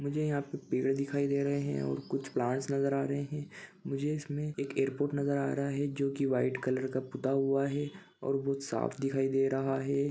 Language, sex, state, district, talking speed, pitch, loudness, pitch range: Hindi, male, Chhattisgarh, Bilaspur, 220 wpm, 140 Hz, -33 LUFS, 135-145 Hz